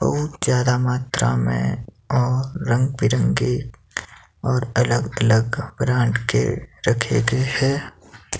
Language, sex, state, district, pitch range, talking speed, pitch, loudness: Hindi, male, Himachal Pradesh, Shimla, 110-130 Hz, 105 wpm, 125 Hz, -21 LUFS